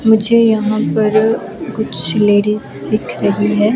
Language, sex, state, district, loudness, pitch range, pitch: Hindi, female, Himachal Pradesh, Shimla, -14 LUFS, 210-220 Hz, 215 Hz